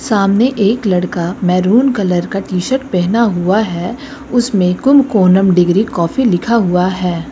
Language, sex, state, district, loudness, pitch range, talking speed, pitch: Hindi, female, Uttar Pradesh, Lucknow, -13 LUFS, 180-235 Hz, 145 wpm, 195 Hz